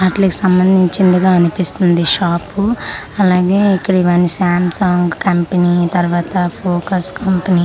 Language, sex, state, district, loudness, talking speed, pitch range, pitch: Telugu, female, Andhra Pradesh, Manyam, -13 LUFS, 110 wpm, 175-190 Hz, 180 Hz